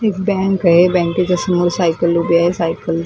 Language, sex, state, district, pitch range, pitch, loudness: Marathi, female, Maharashtra, Mumbai Suburban, 170-180 Hz, 175 Hz, -15 LUFS